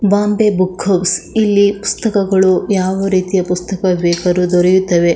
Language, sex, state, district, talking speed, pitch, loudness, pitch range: Kannada, female, Karnataka, Shimoga, 115 wpm, 190 Hz, -14 LUFS, 180-200 Hz